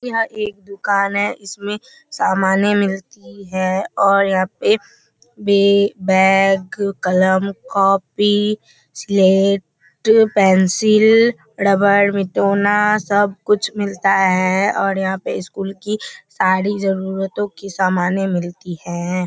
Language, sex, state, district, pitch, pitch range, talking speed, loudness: Hindi, female, Bihar, Kishanganj, 195 Hz, 190-205 Hz, 105 wpm, -16 LUFS